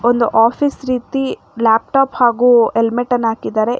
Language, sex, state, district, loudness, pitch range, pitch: Kannada, female, Karnataka, Bangalore, -15 LUFS, 230-255 Hz, 240 Hz